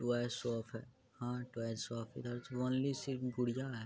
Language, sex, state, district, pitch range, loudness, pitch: Hindi, male, Bihar, Araria, 120-125 Hz, -40 LUFS, 120 Hz